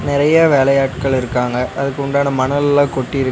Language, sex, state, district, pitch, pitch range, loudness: Tamil, male, Tamil Nadu, Nilgiris, 140 Hz, 130-145 Hz, -15 LUFS